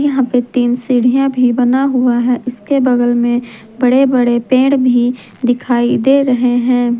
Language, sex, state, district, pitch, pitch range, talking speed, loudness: Hindi, female, Jharkhand, Ranchi, 250 Hz, 240-255 Hz, 165 wpm, -13 LUFS